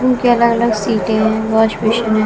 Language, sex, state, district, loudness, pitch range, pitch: Hindi, female, Bihar, West Champaran, -14 LUFS, 220-235 Hz, 220 Hz